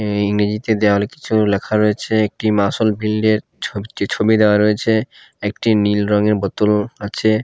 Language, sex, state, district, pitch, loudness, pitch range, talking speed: Bengali, male, Odisha, Khordha, 105 Hz, -17 LUFS, 105-110 Hz, 145 wpm